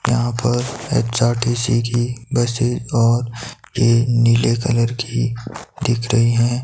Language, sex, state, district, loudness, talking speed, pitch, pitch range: Hindi, male, Himachal Pradesh, Shimla, -18 LUFS, 120 wpm, 120 Hz, 115-120 Hz